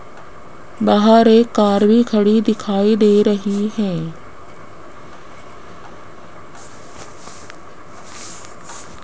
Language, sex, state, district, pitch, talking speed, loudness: Hindi, female, Rajasthan, Jaipur, 205 Hz, 60 wpm, -14 LUFS